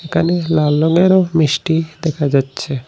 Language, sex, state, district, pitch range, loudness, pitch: Bengali, male, Assam, Hailakandi, 150-165 Hz, -15 LUFS, 160 Hz